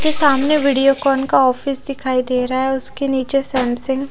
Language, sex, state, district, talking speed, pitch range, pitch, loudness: Hindi, female, Odisha, Khordha, 175 wpm, 260-275 Hz, 265 Hz, -17 LUFS